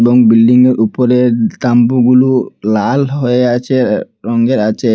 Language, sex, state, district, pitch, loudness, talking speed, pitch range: Bengali, male, Assam, Hailakandi, 125 Hz, -11 LUFS, 120 wpm, 115-125 Hz